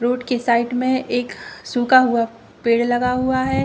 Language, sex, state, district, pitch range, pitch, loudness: Hindi, female, Bihar, Saran, 240-255 Hz, 245 Hz, -19 LUFS